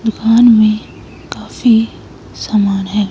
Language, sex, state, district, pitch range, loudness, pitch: Hindi, female, Himachal Pradesh, Shimla, 210-225 Hz, -12 LUFS, 220 Hz